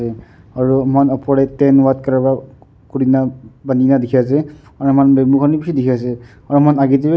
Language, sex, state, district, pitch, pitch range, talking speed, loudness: Nagamese, male, Nagaland, Dimapur, 135 Hz, 130-140 Hz, 185 wpm, -14 LUFS